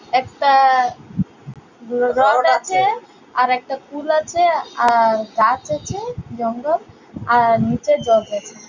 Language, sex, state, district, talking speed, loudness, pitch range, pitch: Bengali, female, West Bengal, Purulia, 95 wpm, -18 LUFS, 230-310 Hz, 255 Hz